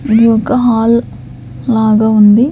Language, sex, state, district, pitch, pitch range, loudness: Telugu, female, Andhra Pradesh, Sri Satya Sai, 225 Hz, 220-235 Hz, -10 LUFS